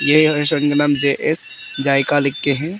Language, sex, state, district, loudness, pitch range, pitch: Hindi, female, Arunachal Pradesh, Papum Pare, -17 LUFS, 140-155 Hz, 145 Hz